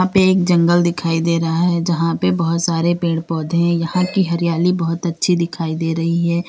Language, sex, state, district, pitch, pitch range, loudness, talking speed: Hindi, female, Uttar Pradesh, Lalitpur, 170 Hz, 165-175 Hz, -17 LUFS, 205 wpm